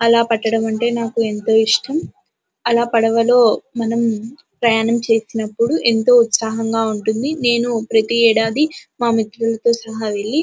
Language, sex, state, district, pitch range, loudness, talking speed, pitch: Telugu, female, Andhra Pradesh, Anantapur, 225-235 Hz, -17 LUFS, 120 wpm, 230 Hz